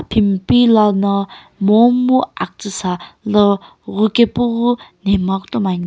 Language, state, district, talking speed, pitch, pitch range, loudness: Sumi, Nagaland, Kohima, 125 wpm, 210 Hz, 200-235 Hz, -15 LUFS